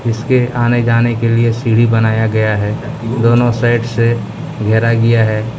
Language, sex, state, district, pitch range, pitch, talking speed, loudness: Hindi, male, Odisha, Khordha, 115-120 Hz, 115 Hz, 160 wpm, -13 LUFS